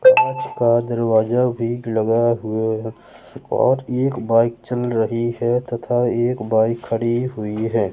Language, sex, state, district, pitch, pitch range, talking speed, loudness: Hindi, male, Madhya Pradesh, Katni, 115 Hz, 115-120 Hz, 135 wpm, -19 LUFS